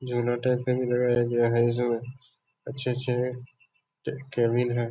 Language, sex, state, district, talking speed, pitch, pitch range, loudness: Hindi, male, Bihar, Darbhanga, 145 wpm, 125 Hz, 120-125 Hz, -26 LUFS